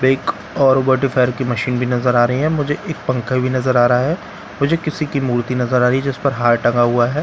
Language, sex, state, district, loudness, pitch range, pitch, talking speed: Hindi, male, Bihar, Katihar, -17 LUFS, 125-140 Hz, 130 Hz, 280 wpm